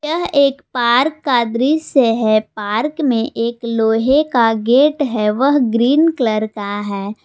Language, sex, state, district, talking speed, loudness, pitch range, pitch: Hindi, female, Jharkhand, Ranchi, 150 wpm, -16 LUFS, 220-280 Hz, 240 Hz